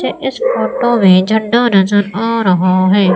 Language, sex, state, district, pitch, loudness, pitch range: Hindi, female, Madhya Pradesh, Umaria, 205 Hz, -12 LUFS, 185-230 Hz